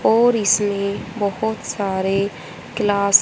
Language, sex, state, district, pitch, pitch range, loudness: Hindi, female, Haryana, Jhajjar, 200 Hz, 195-210 Hz, -19 LUFS